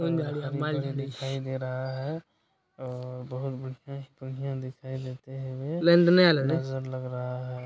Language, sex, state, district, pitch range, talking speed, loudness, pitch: Hindi, male, Bihar, Madhepura, 130-150 Hz, 135 wpm, -29 LUFS, 135 Hz